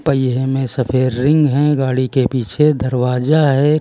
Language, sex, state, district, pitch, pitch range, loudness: Hindi, male, Uttar Pradesh, Lucknow, 135 Hz, 130-150 Hz, -15 LUFS